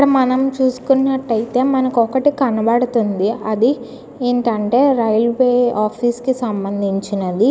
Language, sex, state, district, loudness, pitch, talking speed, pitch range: Telugu, female, Andhra Pradesh, Guntur, -17 LUFS, 245 Hz, 95 wpm, 220-260 Hz